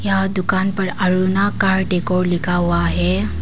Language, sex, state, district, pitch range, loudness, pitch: Hindi, female, Arunachal Pradesh, Papum Pare, 175-195 Hz, -18 LUFS, 185 Hz